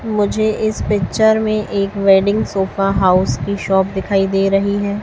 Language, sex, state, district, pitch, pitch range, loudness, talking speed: Hindi, female, Chhattisgarh, Raipur, 200 Hz, 195-215 Hz, -16 LUFS, 165 wpm